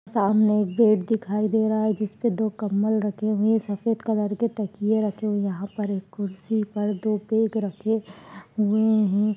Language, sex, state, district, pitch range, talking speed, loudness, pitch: Hindi, female, Uttar Pradesh, Ghazipur, 205-220 Hz, 200 wpm, -24 LUFS, 215 Hz